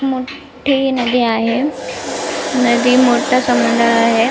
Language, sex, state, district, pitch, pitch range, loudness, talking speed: Marathi, female, Maharashtra, Nagpur, 250 Hz, 235-270 Hz, -15 LUFS, 95 wpm